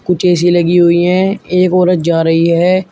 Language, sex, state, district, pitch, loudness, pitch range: Hindi, male, Uttar Pradesh, Shamli, 175 Hz, -11 LUFS, 170-180 Hz